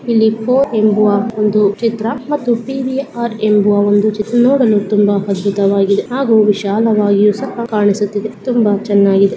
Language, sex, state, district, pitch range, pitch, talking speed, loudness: Kannada, female, Karnataka, Bijapur, 205-235 Hz, 210 Hz, 120 wpm, -14 LUFS